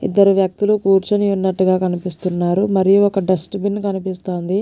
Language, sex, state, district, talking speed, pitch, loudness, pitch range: Telugu, female, Telangana, Nalgonda, 115 wpm, 195 Hz, -17 LUFS, 185-200 Hz